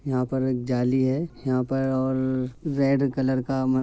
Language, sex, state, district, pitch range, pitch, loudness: Hindi, male, Uttar Pradesh, Muzaffarnagar, 130-135 Hz, 130 Hz, -25 LUFS